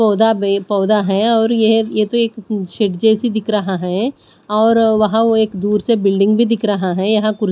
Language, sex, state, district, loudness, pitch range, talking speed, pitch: Hindi, female, Punjab, Pathankot, -15 LUFS, 200-225 Hz, 215 wpm, 215 Hz